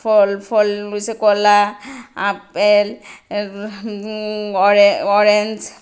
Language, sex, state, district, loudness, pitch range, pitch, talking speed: Bengali, female, Tripura, West Tripura, -16 LUFS, 205-215 Hz, 210 Hz, 80 wpm